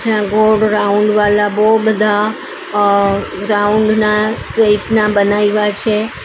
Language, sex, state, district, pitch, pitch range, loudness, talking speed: Gujarati, female, Gujarat, Valsad, 210 Hz, 205-215 Hz, -13 LUFS, 115 wpm